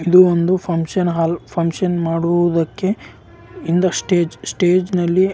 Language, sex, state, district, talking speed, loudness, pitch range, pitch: Kannada, male, Karnataka, Raichur, 110 wpm, -17 LUFS, 165-185 Hz, 175 Hz